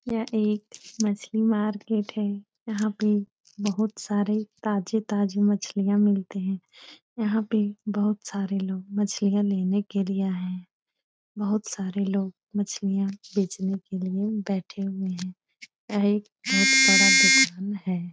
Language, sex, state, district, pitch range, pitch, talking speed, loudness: Hindi, female, Bihar, Supaul, 195-210 Hz, 205 Hz, 130 wpm, -25 LUFS